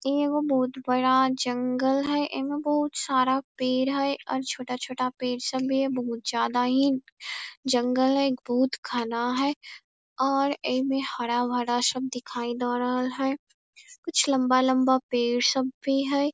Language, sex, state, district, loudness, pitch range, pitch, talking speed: Hindi, female, Bihar, Darbhanga, -26 LUFS, 250-275 Hz, 260 Hz, 145 wpm